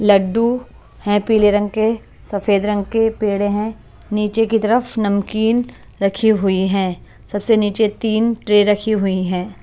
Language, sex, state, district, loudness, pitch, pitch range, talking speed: Hindi, female, Maharashtra, Washim, -17 LUFS, 210 Hz, 200-225 Hz, 150 wpm